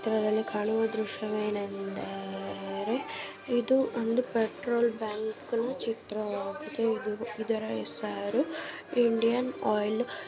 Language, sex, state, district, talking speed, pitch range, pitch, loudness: Kannada, female, Karnataka, Raichur, 95 wpm, 205-230 Hz, 220 Hz, -31 LUFS